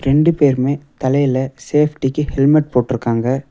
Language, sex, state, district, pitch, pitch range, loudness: Tamil, male, Tamil Nadu, Nilgiris, 135 Hz, 130-150 Hz, -16 LUFS